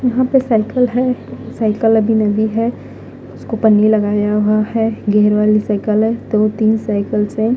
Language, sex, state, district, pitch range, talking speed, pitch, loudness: Hindi, female, Punjab, Fazilka, 210-230 Hz, 165 wpm, 220 Hz, -15 LUFS